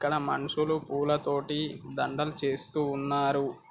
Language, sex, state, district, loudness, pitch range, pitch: Telugu, male, Telangana, Karimnagar, -30 LUFS, 140-150 Hz, 145 Hz